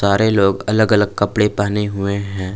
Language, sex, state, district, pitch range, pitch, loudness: Hindi, male, Jharkhand, Palamu, 100-105 Hz, 100 Hz, -17 LUFS